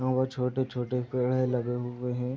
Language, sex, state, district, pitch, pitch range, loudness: Hindi, male, Bihar, Madhepura, 125 Hz, 125-130 Hz, -30 LUFS